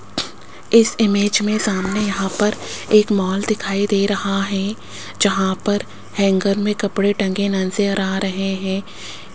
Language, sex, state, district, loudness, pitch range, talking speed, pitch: Hindi, female, Rajasthan, Jaipur, -19 LUFS, 195-205 Hz, 140 wpm, 200 Hz